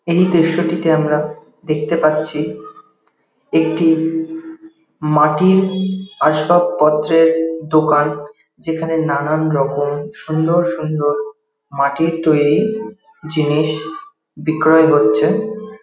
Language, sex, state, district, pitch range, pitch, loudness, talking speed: Bengali, male, West Bengal, Dakshin Dinajpur, 150-180 Hz, 160 Hz, -16 LUFS, 70 wpm